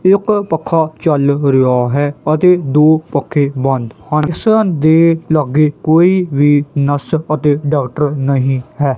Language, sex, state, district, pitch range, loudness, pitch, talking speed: Punjabi, male, Punjab, Kapurthala, 140-160 Hz, -13 LUFS, 150 Hz, 135 wpm